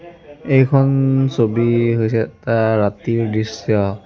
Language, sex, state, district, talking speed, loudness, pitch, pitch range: Assamese, male, Assam, Sonitpur, 90 wpm, -17 LUFS, 115 Hz, 110-135 Hz